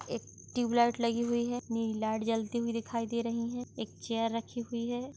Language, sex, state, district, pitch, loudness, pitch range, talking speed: Hindi, female, Maharashtra, Dhule, 235 Hz, -33 LUFS, 230-240 Hz, 195 wpm